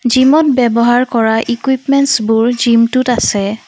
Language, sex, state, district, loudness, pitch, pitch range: Assamese, female, Assam, Kamrup Metropolitan, -12 LUFS, 240 Hz, 230-260 Hz